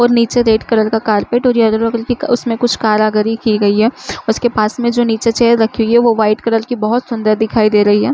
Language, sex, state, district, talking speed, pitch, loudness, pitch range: Hindi, female, Uttar Pradesh, Muzaffarnagar, 250 wpm, 225 Hz, -13 LUFS, 215-235 Hz